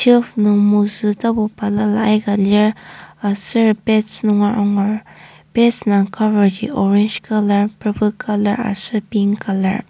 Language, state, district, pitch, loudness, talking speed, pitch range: Ao, Nagaland, Kohima, 210 Hz, -16 LUFS, 140 wpm, 205-215 Hz